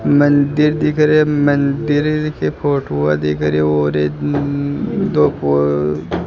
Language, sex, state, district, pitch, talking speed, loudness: Hindi, male, Rajasthan, Jaipur, 140 Hz, 115 wpm, -16 LUFS